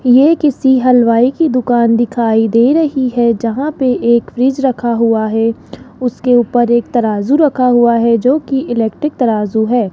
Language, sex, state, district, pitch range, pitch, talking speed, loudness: Hindi, male, Rajasthan, Jaipur, 230-265 Hz, 245 Hz, 170 wpm, -12 LUFS